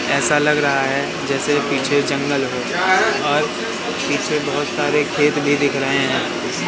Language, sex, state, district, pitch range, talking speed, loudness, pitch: Hindi, male, Madhya Pradesh, Katni, 135-145 Hz, 150 wpm, -18 LUFS, 140 Hz